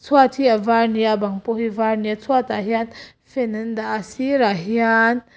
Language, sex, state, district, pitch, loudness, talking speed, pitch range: Mizo, female, Mizoram, Aizawl, 225 Hz, -19 LUFS, 255 wpm, 220-240 Hz